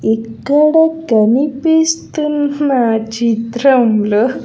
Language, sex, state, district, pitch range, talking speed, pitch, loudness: Telugu, female, Andhra Pradesh, Sri Satya Sai, 225-300 Hz, 40 wpm, 260 Hz, -13 LUFS